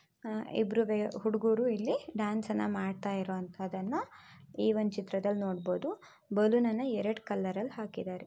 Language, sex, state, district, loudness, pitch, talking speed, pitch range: Kannada, female, Karnataka, Shimoga, -33 LUFS, 210 Hz, 130 wpm, 195-225 Hz